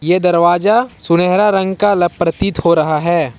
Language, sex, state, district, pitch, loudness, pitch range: Hindi, male, Jharkhand, Ranchi, 175 Hz, -13 LUFS, 170-200 Hz